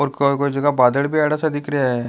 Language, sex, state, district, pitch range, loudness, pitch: Rajasthani, male, Rajasthan, Nagaur, 135-145 Hz, -18 LUFS, 140 Hz